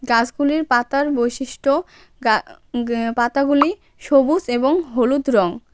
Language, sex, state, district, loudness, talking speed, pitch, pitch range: Bengali, female, West Bengal, Cooch Behar, -19 LUFS, 95 wpm, 265 Hz, 240-285 Hz